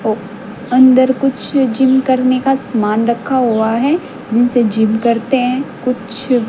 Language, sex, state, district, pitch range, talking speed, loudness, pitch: Hindi, female, Haryana, Jhajjar, 225-260 Hz, 140 wpm, -14 LUFS, 250 Hz